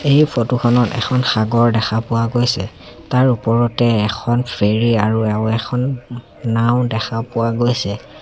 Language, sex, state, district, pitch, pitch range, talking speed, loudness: Assamese, male, Assam, Sonitpur, 115 Hz, 110-125 Hz, 130 wpm, -17 LUFS